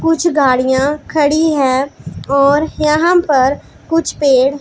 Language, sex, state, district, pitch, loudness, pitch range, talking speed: Hindi, female, Punjab, Pathankot, 290 Hz, -13 LUFS, 270-315 Hz, 115 wpm